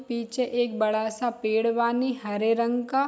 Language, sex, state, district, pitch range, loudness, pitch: Hindi, female, Bihar, Saharsa, 220-245 Hz, -26 LUFS, 235 Hz